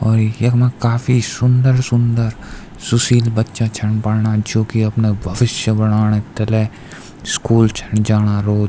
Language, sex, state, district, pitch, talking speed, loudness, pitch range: Garhwali, male, Uttarakhand, Tehri Garhwal, 110 Hz, 125 wpm, -16 LUFS, 110-120 Hz